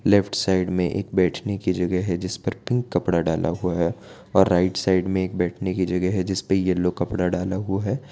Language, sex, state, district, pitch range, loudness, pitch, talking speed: Hindi, male, Gujarat, Valsad, 90-95 Hz, -23 LUFS, 90 Hz, 230 wpm